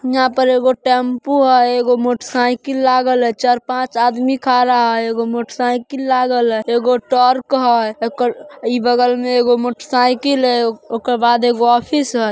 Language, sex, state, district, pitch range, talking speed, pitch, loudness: Magahi, female, Bihar, Samastipur, 240-255 Hz, 150 wpm, 245 Hz, -15 LUFS